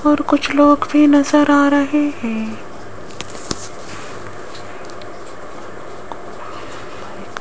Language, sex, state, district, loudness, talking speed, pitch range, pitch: Hindi, female, Rajasthan, Jaipur, -15 LUFS, 65 wpm, 285-295 Hz, 290 Hz